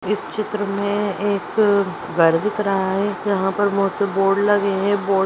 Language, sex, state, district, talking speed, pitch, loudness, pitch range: Bhojpuri, female, Uttar Pradesh, Gorakhpur, 195 wpm, 200 Hz, -20 LUFS, 195-205 Hz